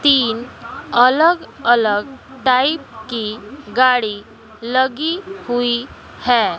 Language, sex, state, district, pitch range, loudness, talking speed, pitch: Hindi, female, Bihar, West Champaran, 225-270 Hz, -17 LUFS, 80 wpm, 250 Hz